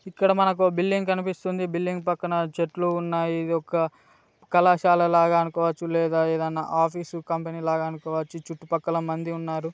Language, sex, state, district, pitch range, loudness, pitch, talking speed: Telugu, male, Telangana, Nalgonda, 165-175 Hz, -24 LUFS, 170 Hz, 125 wpm